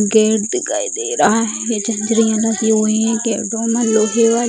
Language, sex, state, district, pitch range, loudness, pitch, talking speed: Hindi, female, Bihar, Sitamarhi, 220-230 Hz, -16 LUFS, 225 Hz, 175 wpm